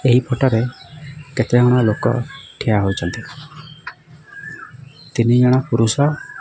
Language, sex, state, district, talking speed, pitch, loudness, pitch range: Odia, male, Odisha, Khordha, 95 wpm, 125 Hz, -17 LUFS, 115-140 Hz